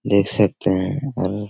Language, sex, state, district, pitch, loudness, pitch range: Hindi, male, Bihar, Araria, 100 Hz, -20 LUFS, 95-115 Hz